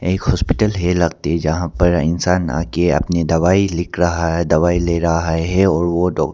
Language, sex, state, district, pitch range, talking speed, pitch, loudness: Hindi, male, Arunachal Pradesh, Papum Pare, 85-90 Hz, 190 wpm, 85 Hz, -17 LUFS